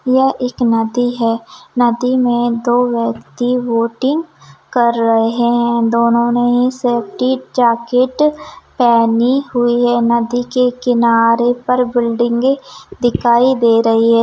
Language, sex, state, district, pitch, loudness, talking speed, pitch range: Hindi, female, Rajasthan, Churu, 240 Hz, -14 LUFS, 120 wpm, 235-250 Hz